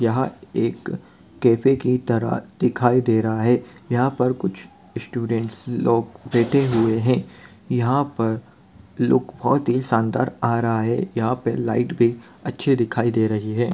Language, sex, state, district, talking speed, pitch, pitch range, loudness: Hindi, male, Bihar, Sitamarhi, 155 wpm, 120 Hz, 115-125 Hz, -21 LUFS